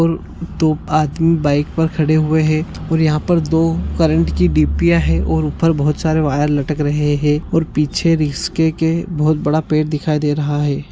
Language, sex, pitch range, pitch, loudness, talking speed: Konkani, male, 145-160 Hz, 155 Hz, -16 LUFS, 190 wpm